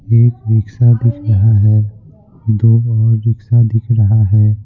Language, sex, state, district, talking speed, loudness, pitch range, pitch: Hindi, male, Bihar, Patna, 140 wpm, -12 LUFS, 105-115 Hz, 110 Hz